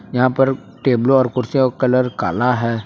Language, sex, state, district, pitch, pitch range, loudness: Hindi, male, Jharkhand, Palamu, 125 Hz, 120-130 Hz, -17 LUFS